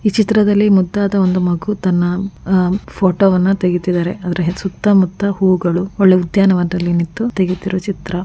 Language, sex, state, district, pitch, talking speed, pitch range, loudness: Kannada, female, Karnataka, Mysore, 185 Hz, 145 wpm, 180-200 Hz, -15 LUFS